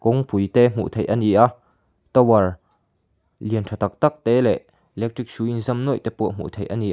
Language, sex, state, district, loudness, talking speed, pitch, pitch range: Mizo, male, Mizoram, Aizawl, -21 LUFS, 215 wpm, 115 Hz, 105-125 Hz